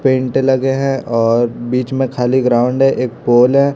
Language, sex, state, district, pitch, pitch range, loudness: Hindi, male, Chhattisgarh, Raipur, 130 Hz, 120-135 Hz, -14 LUFS